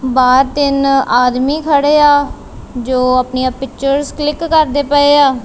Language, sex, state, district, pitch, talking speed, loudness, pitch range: Punjabi, female, Punjab, Kapurthala, 275 Hz, 130 wpm, -12 LUFS, 255-290 Hz